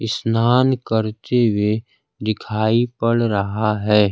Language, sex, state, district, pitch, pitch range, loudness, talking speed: Hindi, male, Bihar, Kaimur, 110 Hz, 105-120 Hz, -19 LUFS, 100 wpm